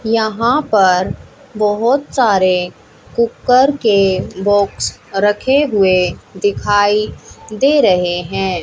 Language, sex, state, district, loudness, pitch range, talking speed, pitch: Hindi, female, Haryana, Jhajjar, -14 LUFS, 190-235 Hz, 90 wpm, 205 Hz